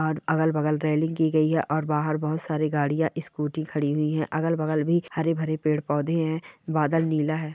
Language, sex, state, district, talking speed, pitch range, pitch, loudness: Hindi, female, Bihar, Darbhanga, 175 wpm, 150-160 Hz, 155 Hz, -25 LUFS